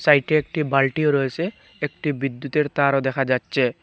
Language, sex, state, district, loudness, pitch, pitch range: Bengali, male, Assam, Hailakandi, -22 LUFS, 140 Hz, 135-150 Hz